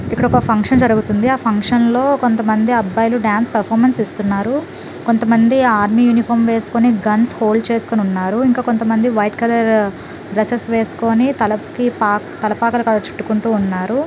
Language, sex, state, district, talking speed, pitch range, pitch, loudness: Telugu, female, Telangana, Nalgonda, 145 wpm, 215-240 Hz, 225 Hz, -15 LUFS